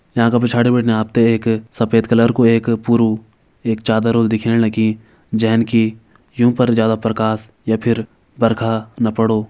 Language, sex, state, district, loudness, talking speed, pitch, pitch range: Hindi, male, Uttarakhand, Tehri Garhwal, -16 LUFS, 175 wpm, 115 Hz, 110-115 Hz